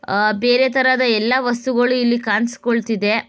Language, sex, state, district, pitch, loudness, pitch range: Kannada, female, Karnataka, Bellary, 240 Hz, -17 LUFS, 220-250 Hz